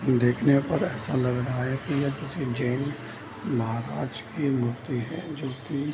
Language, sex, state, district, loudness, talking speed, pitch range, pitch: Hindi, male, Bihar, Bhagalpur, -27 LUFS, 170 wpm, 120-140 Hz, 130 Hz